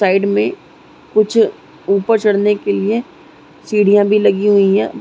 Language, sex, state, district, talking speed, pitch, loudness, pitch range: Hindi, female, Chhattisgarh, Raigarh, 145 wpm, 205 Hz, -14 LUFS, 200-215 Hz